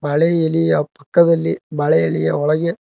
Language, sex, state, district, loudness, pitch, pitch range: Kannada, male, Karnataka, Koppal, -16 LUFS, 155 Hz, 145-165 Hz